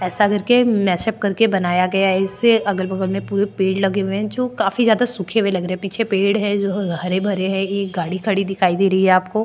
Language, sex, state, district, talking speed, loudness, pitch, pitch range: Hindi, female, Maharashtra, Chandrapur, 255 wpm, -18 LUFS, 195 Hz, 190-210 Hz